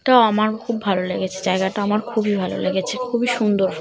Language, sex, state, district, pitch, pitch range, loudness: Bengali, female, West Bengal, North 24 Parganas, 210 Hz, 190-235 Hz, -20 LUFS